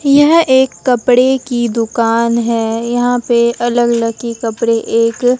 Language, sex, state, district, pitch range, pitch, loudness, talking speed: Hindi, female, Bihar, Katihar, 230-250 Hz, 235 Hz, -13 LUFS, 145 wpm